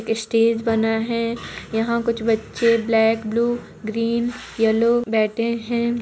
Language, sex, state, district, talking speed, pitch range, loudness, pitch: Hindi, female, Chhattisgarh, Kabirdham, 120 wpm, 225-235 Hz, -21 LUFS, 230 Hz